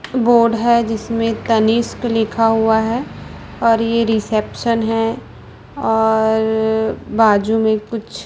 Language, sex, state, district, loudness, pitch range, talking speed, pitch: Hindi, female, Chhattisgarh, Raipur, -16 LUFS, 220-230 Hz, 125 wpm, 225 Hz